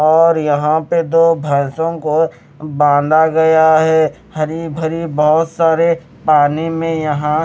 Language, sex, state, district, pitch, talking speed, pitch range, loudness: Hindi, male, Chandigarh, Chandigarh, 160 Hz, 130 wpm, 150-165 Hz, -14 LUFS